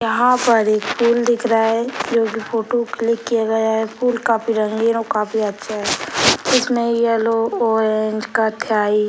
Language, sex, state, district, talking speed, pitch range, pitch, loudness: Hindi, male, Bihar, Sitamarhi, 185 wpm, 220-235 Hz, 225 Hz, -18 LUFS